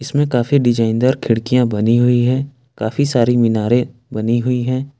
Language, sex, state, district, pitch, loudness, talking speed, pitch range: Hindi, male, Jharkhand, Ranchi, 125 Hz, -16 LUFS, 155 wpm, 115-130 Hz